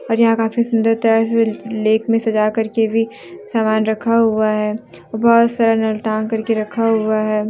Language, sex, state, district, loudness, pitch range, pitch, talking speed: Hindi, female, Jharkhand, Deoghar, -17 LUFS, 220-230 Hz, 225 Hz, 175 wpm